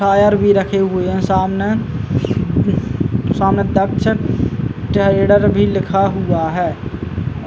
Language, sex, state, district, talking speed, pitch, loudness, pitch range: Hindi, male, Uttar Pradesh, Muzaffarnagar, 95 wpm, 190 Hz, -16 LUFS, 170-195 Hz